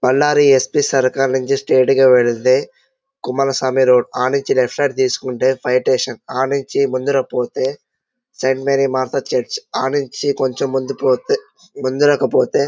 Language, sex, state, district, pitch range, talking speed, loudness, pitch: Telugu, male, Karnataka, Bellary, 130-140 Hz, 150 wpm, -16 LUFS, 135 Hz